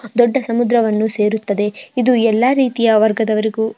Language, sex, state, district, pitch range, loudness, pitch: Kannada, female, Karnataka, Mysore, 215-240 Hz, -15 LUFS, 225 Hz